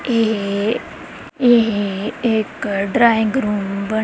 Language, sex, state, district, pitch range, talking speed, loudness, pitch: Punjabi, female, Punjab, Kapurthala, 205-235 Hz, 90 wpm, -18 LUFS, 220 Hz